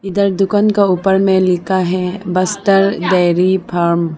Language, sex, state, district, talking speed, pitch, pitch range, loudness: Hindi, female, Arunachal Pradesh, Lower Dibang Valley, 160 wpm, 185 Hz, 180-195 Hz, -14 LUFS